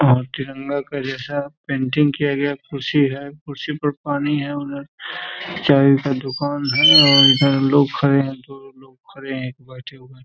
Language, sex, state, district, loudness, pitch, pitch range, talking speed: Hindi, male, Bihar, Saran, -18 LUFS, 140 Hz, 135-145 Hz, 195 wpm